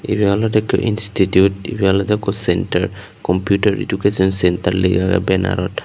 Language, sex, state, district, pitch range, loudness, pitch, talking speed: Chakma, male, Tripura, Unakoti, 95-105 Hz, -17 LUFS, 95 Hz, 145 wpm